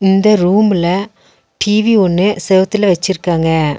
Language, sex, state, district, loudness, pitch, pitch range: Tamil, female, Tamil Nadu, Nilgiris, -13 LUFS, 190 Hz, 175-205 Hz